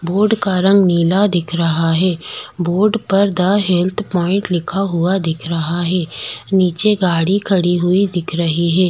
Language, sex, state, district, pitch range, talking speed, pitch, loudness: Hindi, female, Chhattisgarh, Bastar, 170-195 Hz, 160 wpm, 180 Hz, -16 LUFS